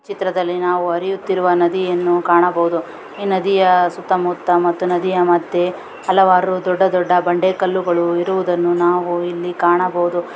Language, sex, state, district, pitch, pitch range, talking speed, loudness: Kannada, female, Karnataka, Gulbarga, 180 Hz, 175-185 Hz, 110 wpm, -17 LUFS